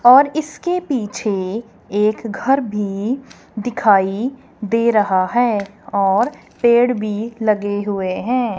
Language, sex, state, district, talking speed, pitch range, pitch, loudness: Hindi, female, Punjab, Kapurthala, 110 wpm, 205-245 Hz, 220 Hz, -18 LUFS